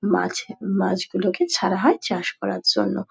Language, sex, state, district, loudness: Bengali, female, West Bengal, Dakshin Dinajpur, -22 LUFS